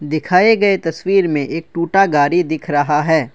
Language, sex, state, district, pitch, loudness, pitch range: Hindi, male, Assam, Kamrup Metropolitan, 165 Hz, -15 LUFS, 150-185 Hz